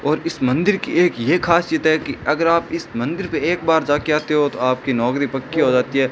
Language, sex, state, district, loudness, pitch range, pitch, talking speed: Hindi, male, Rajasthan, Bikaner, -18 LUFS, 130-165 Hz, 150 Hz, 255 wpm